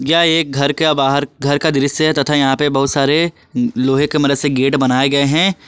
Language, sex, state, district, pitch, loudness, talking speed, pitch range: Hindi, male, Jharkhand, Palamu, 140 Hz, -15 LUFS, 230 wpm, 135-155 Hz